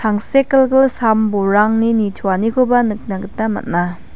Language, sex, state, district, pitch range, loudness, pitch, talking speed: Garo, female, Meghalaya, West Garo Hills, 200-245 Hz, -15 LUFS, 220 Hz, 85 wpm